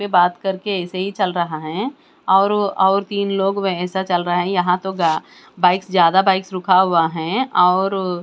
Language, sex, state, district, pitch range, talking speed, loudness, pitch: Hindi, female, Bihar, West Champaran, 180-195 Hz, 205 wpm, -18 LUFS, 190 Hz